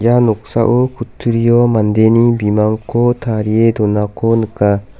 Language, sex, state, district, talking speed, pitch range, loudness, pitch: Garo, male, Meghalaya, South Garo Hills, 95 wpm, 105-120 Hz, -14 LUFS, 115 Hz